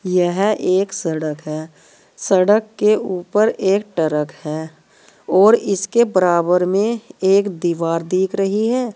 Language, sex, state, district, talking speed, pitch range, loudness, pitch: Hindi, female, Uttar Pradesh, Saharanpur, 125 wpm, 170-210 Hz, -17 LUFS, 190 Hz